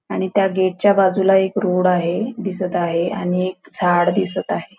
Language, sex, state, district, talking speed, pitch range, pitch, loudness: Marathi, female, Maharashtra, Nagpur, 190 wpm, 180-195 Hz, 185 Hz, -18 LUFS